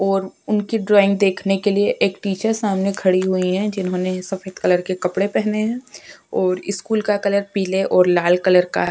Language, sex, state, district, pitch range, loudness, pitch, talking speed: Hindi, female, Uttarakhand, Tehri Garhwal, 185-205 Hz, -19 LUFS, 195 Hz, 195 wpm